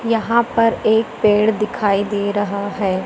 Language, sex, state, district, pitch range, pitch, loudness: Hindi, female, Madhya Pradesh, Katni, 200-230 Hz, 210 Hz, -17 LUFS